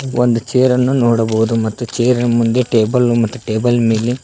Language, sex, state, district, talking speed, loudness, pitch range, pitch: Kannada, male, Karnataka, Koppal, 170 wpm, -15 LUFS, 115-125 Hz, 120 Hz